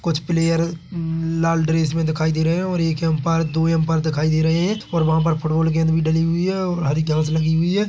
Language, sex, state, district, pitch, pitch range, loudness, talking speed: Hindi, male, Chhattisgarh, Bilaspur, 165 Hz, 160-165 Hz, -20 LUFS, 260 wpm